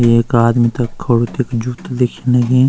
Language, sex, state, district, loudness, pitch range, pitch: Garhwali, male, Uttarakhand, Uttarkashi, -15 LUFS, 115-125 Hz, 120 Hz